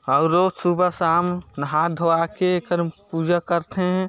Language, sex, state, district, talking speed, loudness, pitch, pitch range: Chhattisgarhi, male, Chhattisgarh, Sarguja, 145 wpm, -21 LUFS, 175 Hz, 165-180 Hz